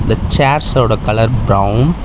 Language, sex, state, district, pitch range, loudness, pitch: Tamil, male, Tamil Nadu, Chennai, 105-130 Hz, -13 LUFS, 115 Hz